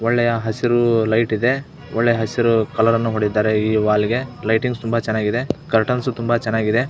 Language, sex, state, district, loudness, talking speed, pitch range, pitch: Kannada, male, Karnataka, Belgaum, -19 LUFS, 150 wpm, 110-120 Hz, 115 Hz